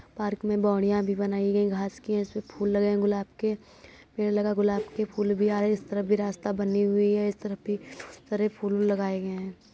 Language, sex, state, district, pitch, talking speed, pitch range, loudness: Hindi, female, Uttar Pradesh, Budaun, 205 Hz, 220 wpm, 200-210 Hz, -27 LUFS